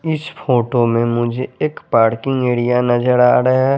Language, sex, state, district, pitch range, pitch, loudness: Hindi, male, Chandigarh, Chandigarh, 120-130 Hz, 125 Hz, -16 LUFS